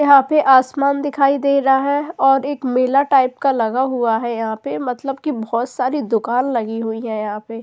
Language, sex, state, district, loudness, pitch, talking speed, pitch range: Hindi, female, Goa, North and South Goa, -17 LUFS, 260 Hz, 220 wpm, 230-280 Hz